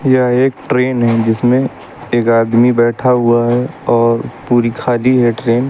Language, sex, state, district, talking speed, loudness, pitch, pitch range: Hindi, male, Uttar Pradesh, Lucknow, 170 wpm, -13 LUFS, 120 Hz, 115-125 Hz